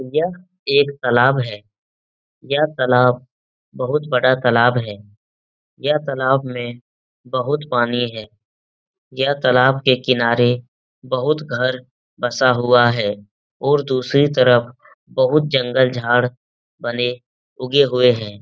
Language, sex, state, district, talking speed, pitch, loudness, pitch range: Hindi, male, Uttar Pradesh, Etah, 115 wpm, 125 Hz, -18 LUFS, 120-135 Hz